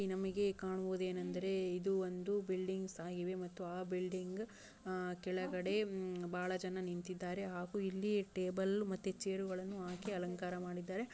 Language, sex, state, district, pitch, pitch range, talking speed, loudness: Kannada, female, Karnataka, Dharwad, 185 Hz, 180-195 Hz, 115 wpm, -41 LUFS